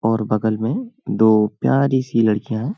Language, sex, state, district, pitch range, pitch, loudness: Hindi, male, Uttar Pradesh, Hamirpur, 110-130 Hz, 110 Hz, -18 LUFS